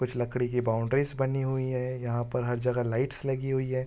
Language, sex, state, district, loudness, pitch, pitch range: Hindi, male, Uttarakhand, Tehri Garhwal, -28 LUFS, 125 Hz, 120-130 Hz